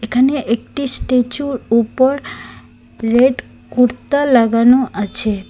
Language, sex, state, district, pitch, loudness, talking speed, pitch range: Bengali, female, Assam, Hailakandi, 245 Hz, -15 LUFS, 100 wpm, 230-265 Hz